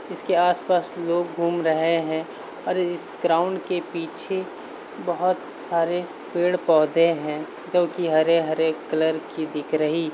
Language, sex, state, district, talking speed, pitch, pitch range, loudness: Hindi, male, Uttar Pradesh, Varanasi, 150 wpm, 170 Hz, 160-175 Hz, -23 LUFS